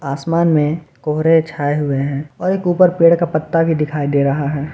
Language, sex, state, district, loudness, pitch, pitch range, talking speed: Hindi, male, Jharkhand, Garhwa, -16 LUFS, 155 Hz, 145-165 Hz, 215 wpm